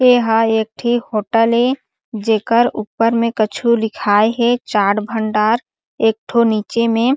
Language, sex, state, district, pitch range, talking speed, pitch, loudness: Chhattisgarhi, female, Chhattisgarh, Sarguja, 215-235 Hz, 140 wpm, 225 Hz, -16 LUFS